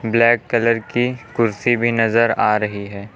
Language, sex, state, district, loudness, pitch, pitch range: Hindi, male, Uttar Pradesh, Lucknow, -17 LUFS, 115 Hz, 110-120 Hz